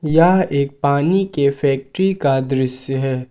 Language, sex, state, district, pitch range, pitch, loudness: Hindi, male, Jharkhand, Garhwa, 135-165 Hz, 140 Hz, -17 LUFS